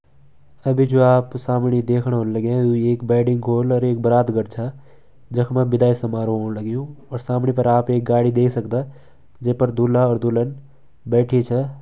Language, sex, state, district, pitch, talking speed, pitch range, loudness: Garhwali, male, Uttarakhand, Tehri Garhwal, 120 Hz, 145 wpm, 120-125 Hz, -19 LUFS